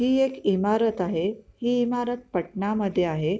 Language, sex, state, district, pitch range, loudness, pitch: Marathi, female, Maharashtra, Pune, 190-245 Hz, -25 LUFS, 210 Hz